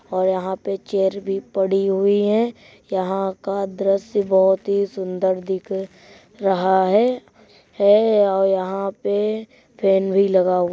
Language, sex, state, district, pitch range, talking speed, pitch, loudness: Hindi, female, Uttar Pradesh, Jyotiba Phule Nagar, 190-200 Hz, 140 wpm, 195 Hz, -20 LUFS